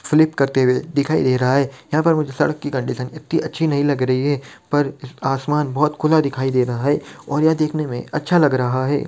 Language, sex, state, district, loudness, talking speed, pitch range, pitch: Hindi, male, Bihar, Darbhanga, -19 LUFS, 240 wpm, 130-155 Hz, 145 Hz